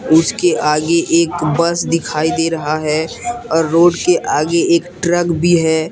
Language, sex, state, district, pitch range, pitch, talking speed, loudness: Hindi, male, Jharkhand, Deoghar, 160-170 Hz, 165 Hz, 160 wpm, -15 LUFS